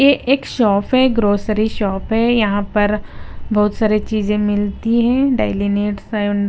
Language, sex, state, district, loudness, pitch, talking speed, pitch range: Hindi, female, Bihar, West Champaran, -17 LUFS, 210 Hz, 165 wpm, 205-230 Hz